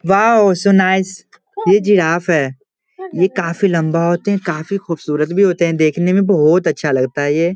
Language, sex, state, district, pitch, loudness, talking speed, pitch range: Hindi, male, Bihar, Samastipur, 180 Hz, -15 LUFS, 180 wpm, 165-200 Hz